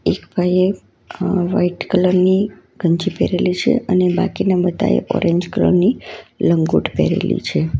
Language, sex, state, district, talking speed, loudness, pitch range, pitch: Gujarati, female, Gujarat, Valsad, 130 wpm, -17 LUFS, 175-190 Hz, 185 Hz